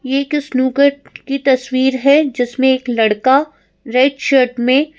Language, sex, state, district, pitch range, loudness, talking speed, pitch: Hindi, female, Madhya Pradesh, Bhopal, 255-280 Hz, -14 LUFS, 145 wpm, 265 Hz